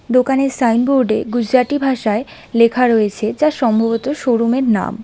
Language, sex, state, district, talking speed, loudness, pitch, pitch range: Bengali, female, West Bengal, Alipurduar, 140 wpm, -16 LUFS, 240 Hz, 225-265 Hz